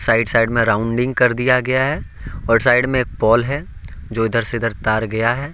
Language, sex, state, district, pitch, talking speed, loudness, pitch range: Hindi, male, Jharkhand, Ranchi, 115 Hz, 225 wpm, -17 LUFS, 115-125 Hz